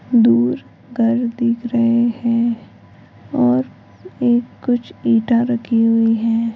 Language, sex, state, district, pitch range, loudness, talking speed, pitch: Hindi, female, Uttar Pradesh, Hamirpur, 225-240 Hz, -17 LUFS, 110 wpm, 230 Hz